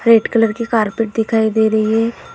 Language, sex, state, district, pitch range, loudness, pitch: Hindi, female, Uttar Pradesh, Budaun, 220-230 Hz, -16 LUFS, 225 Hz